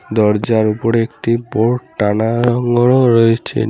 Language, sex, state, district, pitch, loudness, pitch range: Bengali, male, West Bengal, Cooch Behar, 115 Hz, -14 LUFS, 110-120 Hz